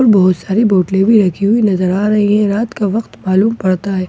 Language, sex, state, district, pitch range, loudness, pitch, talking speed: Hindi, female, Bihar, Katihar, 190-215 Hz, -13 LUFS, 200 Hz, 235 wpm